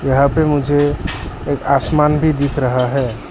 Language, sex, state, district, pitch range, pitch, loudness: Hindi, male, Arunachal Pradesh, Lower Dibang Valley, 125-145 Hz, 140 Hz, -16 LUFS